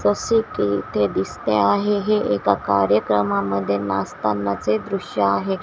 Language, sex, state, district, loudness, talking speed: Marathi, female, Maharashtra, Washim, -20 LUFS, 115 wpm